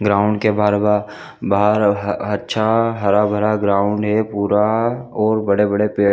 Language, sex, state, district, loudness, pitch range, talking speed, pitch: Hindi, male, Chhattisgarh, Bilaspur, -17 LUFS, 100-110 Hz, 120 wpm, 105 Hz